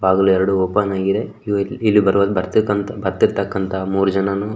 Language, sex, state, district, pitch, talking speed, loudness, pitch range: Kannada, male, Karnataka, Shimoga, 100 Hz, 130 wpm, -18 LUFS, 95-105 Hz